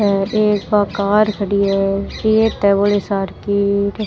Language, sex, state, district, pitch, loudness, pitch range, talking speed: Rajasthani, female, Rajasthan, Churu, 200 Hz, -16 LUFS, 200-210 Hz, 160 wpm